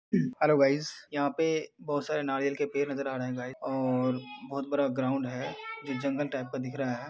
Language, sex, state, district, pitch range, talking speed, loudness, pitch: Hindi, male, Uttar Pradesh, Budaun, 130-145 Hz, 230 wpm, -31 LUFS, 140 Hz